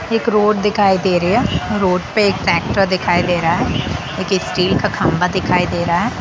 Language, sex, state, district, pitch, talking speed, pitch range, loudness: Hindi, male, Bihar, Sitamarhi, 185 Hz, 205 wpm, 175-210 Hz, -16 LUFS